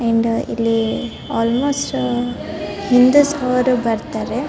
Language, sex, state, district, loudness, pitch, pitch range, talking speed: Kannada, female, Karnataka, Bellary, -18 LUFS, 230 Hz, 215-250 Hz, 95 wpm